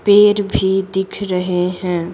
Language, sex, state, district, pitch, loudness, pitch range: Hindi, female, Bihar, Patna, 190 Hz, -16 LUFS, 180-200 Hz